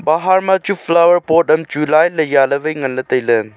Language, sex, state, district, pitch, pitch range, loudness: Wancho, male, Arunachal Pradesh, Longding, 155 Hz, 135-170 Hz, -14 LUFS